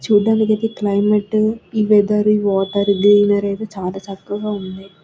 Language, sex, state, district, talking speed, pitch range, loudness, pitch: Telugu, female, Telangana, Nalgonda, 145 wpm, 200-215 Hz, -17 LUFS, 205 Hz